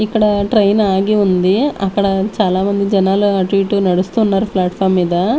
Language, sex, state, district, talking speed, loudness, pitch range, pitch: Telugu, female, Andhra Pradesh, Manyam, 135 wpm, -14 LUFS, 190-210 Hz, 195 Hz